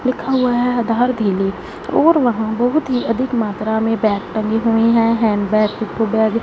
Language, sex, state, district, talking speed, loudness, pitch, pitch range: Hindi, female, Punjab, Fazilka, 195 wpm, -17 LUFS, 225 Hz, 220-245 Hz